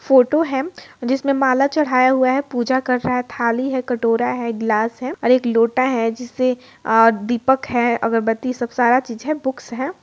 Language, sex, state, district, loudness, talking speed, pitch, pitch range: Hindi, female, Bihar, Muzaffarpur, -18 LUFS, 195 wpm, 255 Hz, 235-265 Hz